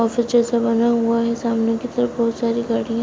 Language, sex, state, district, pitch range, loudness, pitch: Hindi, female, Uttar Pradesh, Muzaffarnagar, 230-235 Hz, -19 LUFS, 235 Hz